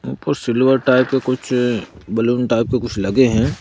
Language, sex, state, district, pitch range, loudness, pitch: Hindi, male, Madhya Pradesh, Bhopal, 115-130 Hz, -17 LUFS, 120 Hz